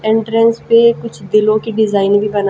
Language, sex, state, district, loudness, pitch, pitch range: Hindi, female, Haryana, Jhajjar, -13 LUFS, 220 Hz, 205-230 Hz